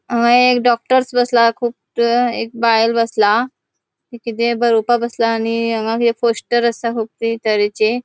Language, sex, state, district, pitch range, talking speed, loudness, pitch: Konkani, female, Goa, North and South Goa, 230-240 Hz, 140 wpm, -16 LUFS, 235 Hz